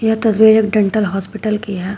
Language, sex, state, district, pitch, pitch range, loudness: Hindi, female, Uttar Pradesh, Shamli, 215 Hz, 200-220 Hz, -15 LUFS